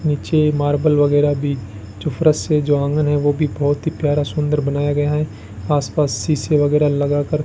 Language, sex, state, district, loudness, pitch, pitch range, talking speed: Hindi, male, Rajasthan, Bikaner, -18 LUFS, 145 Hz, 145-150 Hz, 200 wpm